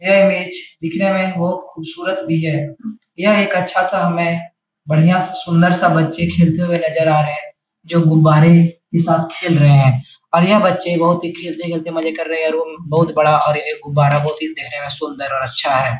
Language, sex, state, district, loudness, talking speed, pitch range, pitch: Hindi, male, Bihar, Jahanabad, -15 LUFS, 195 wpm, 155-180 Hz, 165 Hz